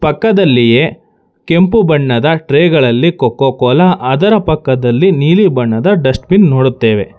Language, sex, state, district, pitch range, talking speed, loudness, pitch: Kannada, male, Karnataka, Bangalore, 125-185 Hz, 115 wpm, -10 LUFS, 155 Hz